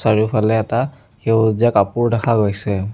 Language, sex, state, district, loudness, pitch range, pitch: Assamese, male, Assam, Sonitpur, -17 LUFS, 110-120 Hz, 110 Hz